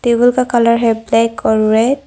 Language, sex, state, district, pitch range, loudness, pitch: Hindi, female, Arunachal Pradesh, Longding, 225-245 Hz, -13 LUFS, 230 Hz